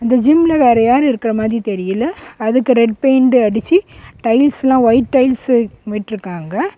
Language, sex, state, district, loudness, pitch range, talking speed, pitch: Tamil, female, Tamil Nadu, Kanyakumari, -14 LUFS, 220-265 Hz, 140 wpm, 245 Hz